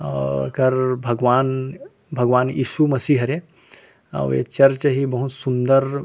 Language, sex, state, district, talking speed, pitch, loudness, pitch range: Chhattisgarhi, male, Chhattisgarh, Rajnandgaon, 140 wpm, 130 Hz, -19 LUFS, 125-135 Hz